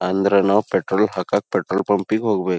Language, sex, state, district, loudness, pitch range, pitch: Kannada, male, Karnataka, Belgaum, -19 LUFS, 95-100 Hz, 100 Hz